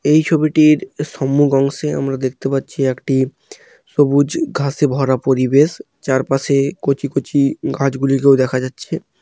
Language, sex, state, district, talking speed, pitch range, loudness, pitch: Bengali, male, West Bengal, Paschim Medinipur, 125 wpm, 135-150 Hz, -16 LUFS, 140 Hz